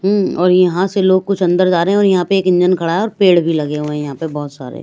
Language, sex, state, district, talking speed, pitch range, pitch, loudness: Hindi, female, Bihar, Katihar, 335 wpm, 165-190 Hz, 180 Hz, -14 LUFS